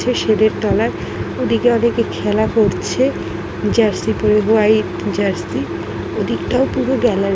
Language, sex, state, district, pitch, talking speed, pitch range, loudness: Bengali, female, West Bengal, Dakshin Dinajpur, 220 Hz, 105 wpm, 215-240 Hz, -17 LUFS